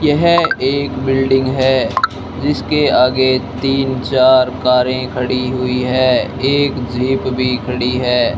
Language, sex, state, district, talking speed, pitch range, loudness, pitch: Hindi, male, Rajasthan, Bikaner, 120 wpm, 125-135 Hz, -15 LUFS, 130 Hz